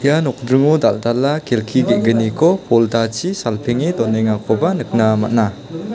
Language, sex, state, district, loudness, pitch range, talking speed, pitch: Garo, male, Meghalaya, South Garo Hills, -16 LUFS, 115-150 Hz, 100 wpm, 120 Hz